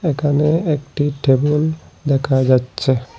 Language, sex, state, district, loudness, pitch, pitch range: Bengali, male, Assam, Hailakandi, -17 LUFS, 145 Hz, 135-150 Hz